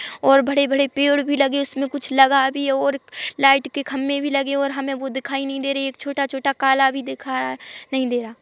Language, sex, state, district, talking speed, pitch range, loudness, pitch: Hindi, female, Chhattisgarh, Bilaspur, 240 wpm, 270-280 Hz, -20 LUFS, 275 Hz